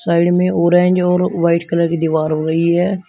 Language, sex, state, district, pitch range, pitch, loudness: Hindi, male, Uttar Pradesh, Shamli, 170-180 Hz, 170 Hz, -15 LUFS